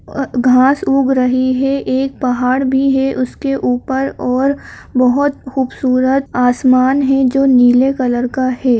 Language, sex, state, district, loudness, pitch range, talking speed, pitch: Kumaoni, female, Uttarakhand, Uttarkashi, -14 LUFS, 255-270 Hz, 145 wpm, 260 Hz